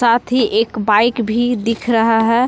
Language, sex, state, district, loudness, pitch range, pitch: Hindi, female, Jharkhand, Palamu, -15 LUFS, 225-240 Hz, 230 Hz